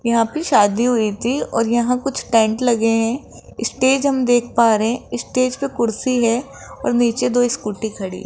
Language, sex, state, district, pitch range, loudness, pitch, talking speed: Hindi, female, Rajasthan, Jaipur, 225-255 Hz, -18 LUFS, 240 Hz, 195 wpm